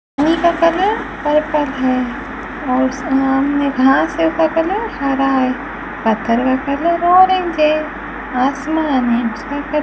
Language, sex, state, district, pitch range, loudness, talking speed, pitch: Hindi, female, Rajasthan, Bikaner, 260-320 Hz, -16 LUFS, 140 wpm, 285 Hz